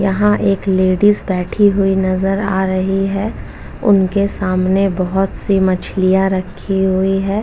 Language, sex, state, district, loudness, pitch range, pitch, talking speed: Hindi, female, Uttar Pradesh, Jalaun, -15 LUFS, 185-200 Hz, 195 Hz, 135 wpm